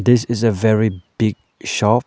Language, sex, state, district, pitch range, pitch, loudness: English, male, Arunachal Pradesh, Lower Dibang Valley, 105-120 Hz, 110 Hz, -18 LUFS